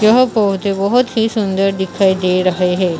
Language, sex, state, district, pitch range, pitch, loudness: Hindi, female, Maharashtra, Mumbai Suburban, 185-215 Hz, 195 Hz, -15 LUFS